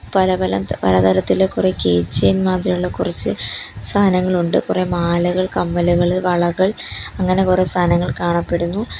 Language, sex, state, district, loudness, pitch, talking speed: Malayalam, female, Kerala, Kollam, -17 LUFS, 175 Hz, 125 wpm